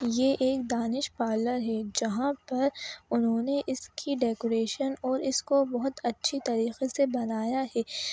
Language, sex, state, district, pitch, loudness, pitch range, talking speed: Hindi, female, Uttar Pradesh, Etah, 255 Hz, -29 LUFS, 230-275 Hz, 135 wpm